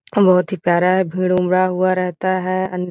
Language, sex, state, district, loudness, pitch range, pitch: Hindi, female, Bihar, Jahanabad, -17 LUFS, 180-185 Hz, 185 Hz